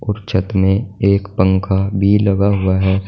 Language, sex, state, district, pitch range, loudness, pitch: Hindi, male, Uttar Pradesh, Saharanpur, 95-100 Hz, -15 LUFS, 100 Hz